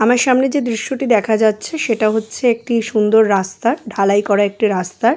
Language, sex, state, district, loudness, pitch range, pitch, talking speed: Bengali, female, West Bengal, Jalpaiguri, -16 LUFS, 210-240 Hz, 220 Hz, 175 wpm